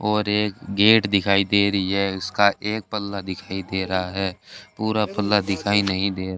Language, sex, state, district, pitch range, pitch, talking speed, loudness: Hindi, male, Rajasthan, Bikaner, 95-105 Hz, 100 Hz, 190 wpm, -21 LUFS